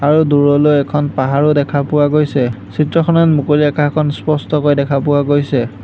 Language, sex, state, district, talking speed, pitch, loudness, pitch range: Assamese, male, Assam, Hailakandi, 145 wpm, 145 Hz, -13 LUFS, 140-150 Hz